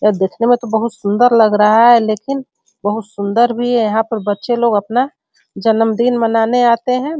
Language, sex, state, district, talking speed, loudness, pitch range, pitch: Hindi, female, Bihar, Sitamarhi, 190 wpm, -14 LUFS, 215-240 Hz, 230 Hz